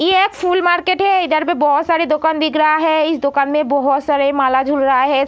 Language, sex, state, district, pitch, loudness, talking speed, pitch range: Hindi, female, Bihar, Araria, 310 Hz, -15 LUFS, 250 wpm, 280-340 Hz